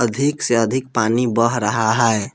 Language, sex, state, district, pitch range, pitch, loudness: Hindi, male, Jharkhand, Palamu, 110-125 Hz, 115 Hz, -18 LUFS